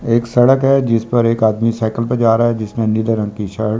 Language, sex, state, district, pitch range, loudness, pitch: Hindi, male, Delhi, New Delhi, 110-120 Hz, -15 LUFS, 115 Hz